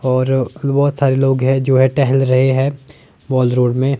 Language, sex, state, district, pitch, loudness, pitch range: Hindi, male, Himachal Pradesh, Shimla, 135 Hz, -15 LUFS, 130-140 Hz